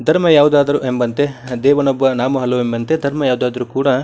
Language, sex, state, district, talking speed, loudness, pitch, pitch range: Kannada, male, Karnataka, Bijapur, 150 wpm, -15 LUFS, 135 Hz, 125-145 Hz